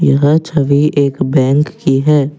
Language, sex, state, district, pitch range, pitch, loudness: Hindi, male, Assam, Kamrup Metropolitan, 140-150 Hz, 145 Hz, -12 LUFS